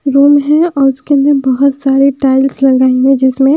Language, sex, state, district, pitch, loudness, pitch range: Hindi, female, Bihar, West Champaran, 275 Hz, -10 LUFS, 265-285 Hz